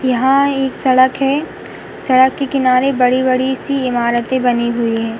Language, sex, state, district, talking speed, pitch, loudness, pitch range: Hindi, female, Uttar Pradesh, Hamirpur, 150 wpm, 255 Hz, -14 LUFS, 245-270 Hz